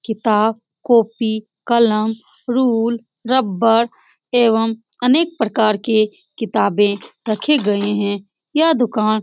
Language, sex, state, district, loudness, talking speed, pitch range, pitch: Hindi, female, Bihar, Saran, -17 LUFS, 105 wpm, 215-240 Hz, 225 Hz